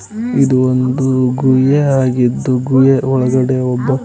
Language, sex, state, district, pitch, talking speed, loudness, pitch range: Kannada, male, Karnataka, Koppal, 130 Hz, 105 wpm, -13 LUFS, 130-135 Hz